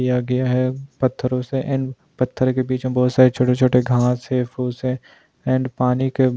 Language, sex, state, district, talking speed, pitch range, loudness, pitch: Hindi, male, Goa, North and South Goa, 190 wpm, 125-130 Hz, -20 LUFS, 130 Hz